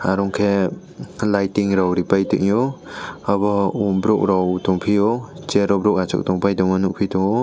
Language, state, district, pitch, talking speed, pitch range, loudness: Kokborok, Tripura, West Tripura, 100 Hz, 135 wpm, 95-105 Hz, -19 LUFS